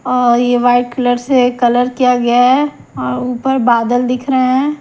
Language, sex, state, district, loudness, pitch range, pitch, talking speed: Hindi, female, Haryana, Jhajjar, -13 LUFS, 245-255 Hz, 245 Hz, 200 wpm